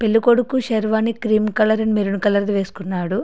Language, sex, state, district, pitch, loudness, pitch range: Telugu, female, Andhra Pradesh, Srikakulam, 215 Hz, -19 LUFS, 200-225 Hz